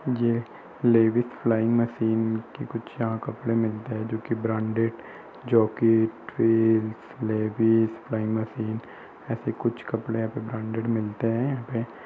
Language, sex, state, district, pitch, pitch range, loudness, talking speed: Hindi, male, Uttar Pradesh, Budaun, 115 Hz, 110-115 Hz, -26 LUFS, 135 wpm